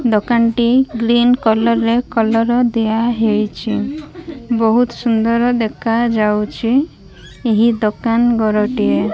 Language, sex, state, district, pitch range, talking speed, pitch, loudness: Odia, female, Odisha, Malkangiri, 220-240 Hz, 105 wpm, 230 Hz, -15 LUFS